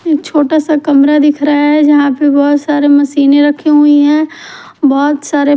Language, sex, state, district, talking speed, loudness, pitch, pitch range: Hindi, female, Haryana, Charkhi Dadri, 195 wpm, -9 LUFS, 290 Hz, 290-300 Hz